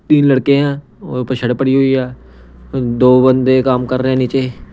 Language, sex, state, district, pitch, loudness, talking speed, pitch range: Hindi, male, Punjab, Pathankot, 130 Hz, -14 LUFS, 190 wpm, 125-135 Hz